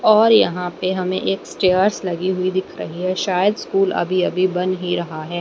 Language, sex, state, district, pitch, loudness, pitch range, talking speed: Hindi, female, Haryana, Rohtak, 185 Hz, -19 LUFS, 180-195 Hz, 210 wpm